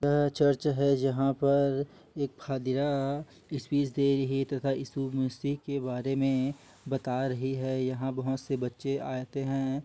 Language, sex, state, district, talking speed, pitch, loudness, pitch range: Hindi, male, Chhattisgarh, Kabirdham, 150 wpm, 135 Hz, -30 LUFS, 130-140 Hz